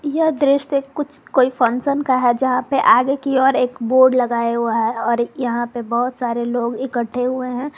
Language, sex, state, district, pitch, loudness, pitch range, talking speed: Hindi, female, Jharkhand, Garhwa, 255 Hz, -18 LUFS, 240-275 Hz, 200 wpm